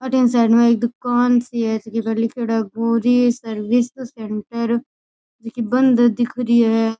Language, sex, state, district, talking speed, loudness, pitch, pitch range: Rajasthani, female, Rajasthan, Nagaur, 165 wpm, -18 LUFS, 235 Hz, 225-245 Hz